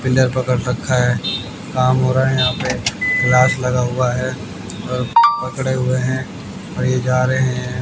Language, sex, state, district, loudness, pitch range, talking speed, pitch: Hindi, male, Haryana, Jhajjar, -17 LUFS, 125-130 Hz, 175 wpm, 130 Hz